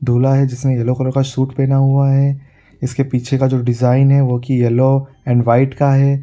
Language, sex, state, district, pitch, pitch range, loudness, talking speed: Hindi, male, Bihar, Supaul, 135 Hz, 125-135 Hz, -15 LUFS, 230 wpm